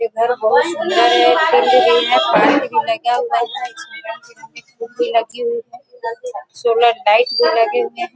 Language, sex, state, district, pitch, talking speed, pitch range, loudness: Hindi, female, Bihar, Sitamarhi, 250 Hz, 175 wpm, 230-360 Hz, -15 LUFS